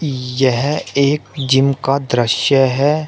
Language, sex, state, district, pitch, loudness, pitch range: Hindi, male, Uttar Pradesh, Shamli, 135 Hz, -16 LUFS, 130-145 Hz